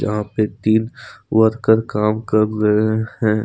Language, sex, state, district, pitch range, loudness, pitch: Hindi, male, Jharkhand, Deoghar, 105-110 Hz, -18 LUFS, 110 Hz